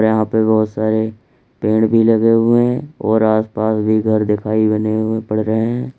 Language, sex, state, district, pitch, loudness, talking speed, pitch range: Hindi, male, Uttar Pradesh, Lalitpur, 110 Hz, -16 LUFS, 190 wpm, 110-115 Hz